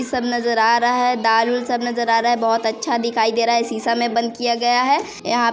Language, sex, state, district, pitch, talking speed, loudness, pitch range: Hindi, female, Chhattisgarh, Sarguja, 235 Hz, 270 wpm, -18 LUFS, 230-240 Hz